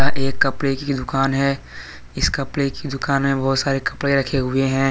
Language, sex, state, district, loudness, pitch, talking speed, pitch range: Hindi, male, Jharkhand, Deoghar, -20 LUFS, 135 Hz, 195 wpm, 135-140 Hz